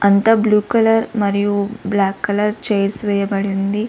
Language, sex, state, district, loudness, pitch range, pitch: Telugu, female, Andhra Pradesh, Sri Satya Sai, -17 LUFS, 200-215 Hz, 205 Hz